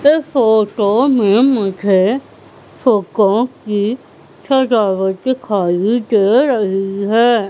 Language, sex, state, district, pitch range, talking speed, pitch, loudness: Hindi, female, Madhya Pradesh, Umaria, 200-250 Hz, 90 wpm, 220 Hz, -14 LUFS